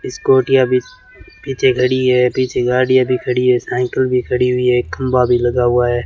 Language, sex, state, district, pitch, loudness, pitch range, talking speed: Hindi, male, Rajasthan, Bikaner, 125 Hz, -15 LUFS, 125-130 Hz, 200 wpm